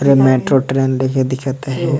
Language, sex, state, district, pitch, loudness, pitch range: Sadri, male, Chhattisgarh, Jashpur, 135 Hz, -15 LUFS, 130-140 Hz